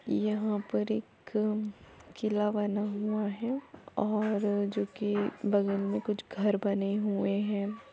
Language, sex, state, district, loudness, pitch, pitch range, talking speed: Hindi, female, Uttar Pradesh, Jalaun, -31 LUFS, 205 Hz, 200-210 Hz, 135 wpm